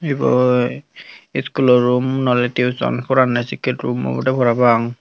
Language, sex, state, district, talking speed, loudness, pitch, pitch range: Chakma, female, Tripura, Unakoti, 130 wpm, -17 LUFS, 125 Hz, 120-130 Hz